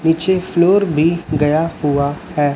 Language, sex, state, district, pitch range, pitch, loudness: Hindi, male, Chhattisgarh, Raipur, 150-175 Hz, 160 Hz, -16 LUFS